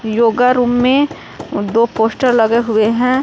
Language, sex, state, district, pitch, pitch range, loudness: Hindi, female, Jharkhand, Palamu, 235 Hz, 225-250 Hz, -14 LUFS